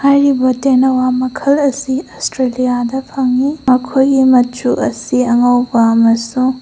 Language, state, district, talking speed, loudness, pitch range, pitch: Manipuri, Manipur, Imphal West, 110 wpm, -13 LUFS, 250-270 Hz, 255 Hz